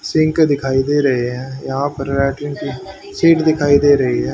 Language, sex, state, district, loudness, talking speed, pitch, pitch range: Hindi, male, Haryana, Charkhi Dadri, -16 LUFS, 180 wpm, 140 Hz, 135-150 Hz